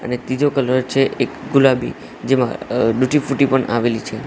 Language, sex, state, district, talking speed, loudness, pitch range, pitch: Gujarati, male, Gujarat, Gandhinagar, 180 wpm, -17 LUFS, 125-135 Hz, 130 Hz